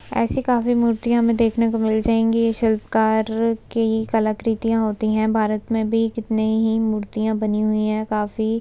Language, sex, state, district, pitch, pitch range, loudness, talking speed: Hindi, female, Uttar Pradesh, Budaun, 220 Hz, 220-230 Hz, -20 LUFS, 175 wpm